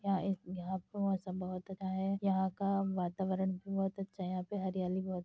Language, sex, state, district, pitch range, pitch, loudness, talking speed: Hindi, female, Uttar Pradesh, Budaun, 185-195 Hz, 190 Hz, -37 LUFS, 215 wpm